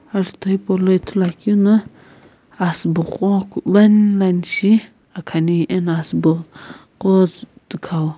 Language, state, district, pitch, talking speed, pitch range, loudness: Sumi, Nagaland, Kohima, 190 Hz, 125 wpm, 170-205 Hz, -17 LUFS